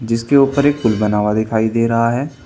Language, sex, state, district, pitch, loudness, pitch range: Hindi, male, Uttar Pradesh, Saharanpur, 115 Hz, -15 LUFS, 110-135 Hz